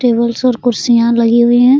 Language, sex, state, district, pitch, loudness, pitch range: Hindi, female, Bihar, Araria, 240 Hz, -11 LUFS, 235-245 Hz